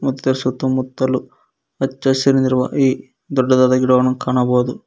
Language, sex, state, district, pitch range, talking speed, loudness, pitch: Kannada, male, Karnataka, Koppal, 125-135 Hz, 100 wpm, -17 LUFS, 130 Hz